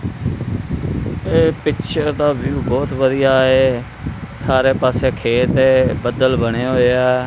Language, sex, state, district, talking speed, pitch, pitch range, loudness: Punjabi, male, Punjab, Kapurthala, 115 wpm, 130 Hz, 120-135 Hz, -16 LUFS